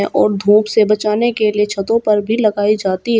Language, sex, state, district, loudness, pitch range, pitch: Hindi, female, Uttar Pradesh, Shamli, -15 LUFS, 210-220 Hz, 210 Hz